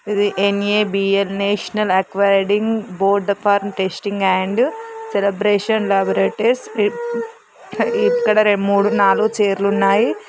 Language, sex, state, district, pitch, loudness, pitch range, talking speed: Telugu, male, Telangana, Karimnagar, 205 Hz, -17 LUFS, 200-220 Hz, 85 wpm